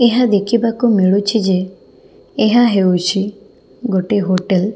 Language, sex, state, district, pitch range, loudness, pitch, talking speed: Odia, female, Odisha, Khordha, 190-230 Hz, -15 LUFS, 205 Hz, 115 wpm